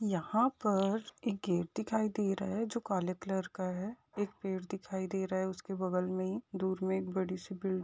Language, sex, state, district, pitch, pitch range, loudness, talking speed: Hindi, female, Chhattisgarh, Bilaspur, 190 Hz, 185-210 Hz, -36 LUFS, 220 wpm